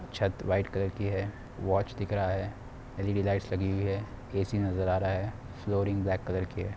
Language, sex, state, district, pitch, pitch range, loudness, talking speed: Hindi, male, Bihar, Samastipur, 100 Hz, 95-105 Hz, -32 LUFS, 215 wpm